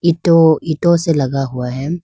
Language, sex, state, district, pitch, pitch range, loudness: Hindi, female, Arunachal Pradesh, Lower Dibang Valley, 160 Hz, 135-170 Hz, -14 LUFS